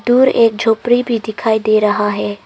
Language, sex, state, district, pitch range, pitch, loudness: Hindi, female, Arunachal Pradesh, Longding, 210-240 Hz, 220 Hz, -14 LUFS